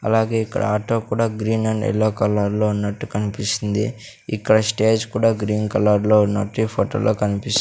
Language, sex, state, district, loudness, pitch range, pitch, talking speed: Telugu, male, Andhra Pradesh, Sri Satya Sai, -20 LUFS, 105-110 Hz, 110 Hz, 180 wpm